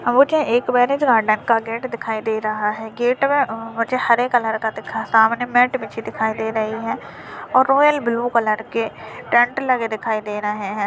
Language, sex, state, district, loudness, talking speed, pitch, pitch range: Hindi, male, Uttarakhand, Uttarkashi, -19 LUFS, 195 wpm, 230 Hz, 220-245 Hz